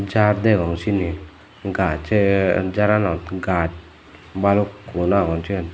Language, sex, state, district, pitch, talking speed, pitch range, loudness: Chakma, male, Tripura, Dhalai, 95 Hz, 105 wpm, 85-100 Hz, -20 LUFS